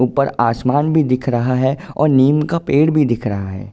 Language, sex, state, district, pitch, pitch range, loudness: Hindi, male, Uttar Pradesh, Ghazipur, 135 Hz, 120-150 Hz, -16 LUFS